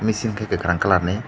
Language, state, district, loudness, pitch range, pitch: Kokborok, Tripura, Dhalai, -21 LUFS, 90-110 Hz, 100 Hz